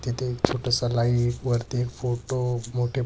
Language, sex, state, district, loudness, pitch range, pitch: Marathi, male, Maharashtra, Dhule, -26 LUFS, 120-125 Hz, 125 Hz